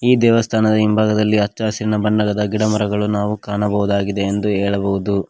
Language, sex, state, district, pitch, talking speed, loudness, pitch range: Kannada, male, Karnataka, Koppal, 105 Hz, 125 wpm, -17 LUFS, 100-110 Hz